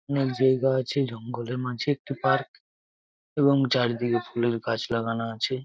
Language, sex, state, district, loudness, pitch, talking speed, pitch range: Bengali, male, West Bengal, Jhargram, -26 LUFS, 125 Hz, 140 wpm, 120-135 Hz